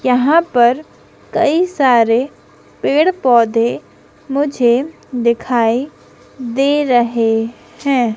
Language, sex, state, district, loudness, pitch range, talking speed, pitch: Hindi, female, Madhya Pradesh, Dhar, -15 LUFS, 235-285 Hz, 80 wpm, 250 Hz